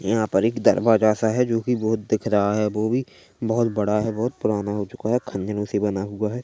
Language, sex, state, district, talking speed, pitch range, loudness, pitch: Hindi, male, Chhattisgarh, Bilaspur, 250 wpm, 105-115 Hz, -22 LUFS, 110 Hz